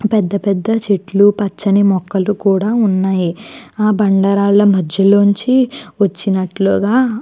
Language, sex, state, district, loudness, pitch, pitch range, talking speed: Telugu, female, Andhra Pradesh, Chittoor, -14 LUFS, 200 Hz, 195-210 Hz, 110 wpm